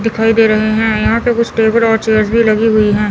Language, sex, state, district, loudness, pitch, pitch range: Hindi, female, Chandigarh, Chandigarh, -12 LUFS, 225 Hz, 215-225 Hz